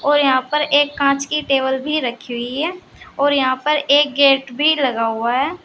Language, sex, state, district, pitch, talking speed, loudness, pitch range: Hindi, female, Uttar Pradesh, Saharanpur, 280 Hz, 210 wpm, -17 LUFS, 260-295 Hz